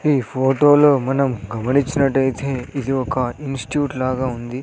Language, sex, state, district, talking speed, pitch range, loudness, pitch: Telugu, male, Andhra Pradesh, Sri Satya Sai, 140 wpm, 130-140 Hz, -19 LUFS, 135 Hz